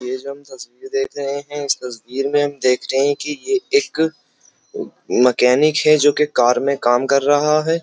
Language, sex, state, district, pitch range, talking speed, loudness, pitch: Hindi, male, Uttar Pradesh, Jyotiba Phule Nagar, 130-150 Hz, 205 wpm, -17 LUFS, 140 Hz